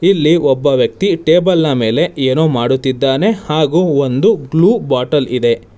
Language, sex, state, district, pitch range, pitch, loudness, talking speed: Kannada, male, Karnataka, Bangalore, 130-170 Hz, 145 Hz, -13 LUFS, 125 wpm